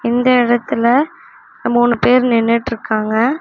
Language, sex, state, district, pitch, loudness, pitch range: Tamil, female, Tamil Nadu, Namakkal, 240 Hz, -15 LUFS, 230-250 Hz